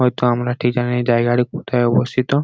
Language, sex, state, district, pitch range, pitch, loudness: Bengali, male, West Bengal, Jhargram, 120-125 Hz, 125 Hz, -18 LUFS